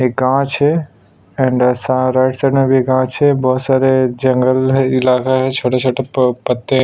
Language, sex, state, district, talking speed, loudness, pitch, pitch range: Hindi, male, Chhattisgarh, Sukma, 200 wpm, -14 LUFS, 130 Hz, 125-130 Hz